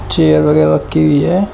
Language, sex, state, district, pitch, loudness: Hindi, male, Uttar Pradesh, Shamli, 110 Hz, -12 LUFS